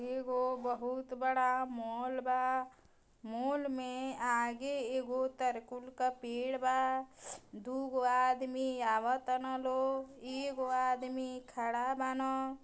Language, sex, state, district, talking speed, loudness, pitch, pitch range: Bhojpuri, female, Uttar Pradesh, Gorakhpur, 105 wpm, -36 LUFS, 255 Hz, 250-260 Hz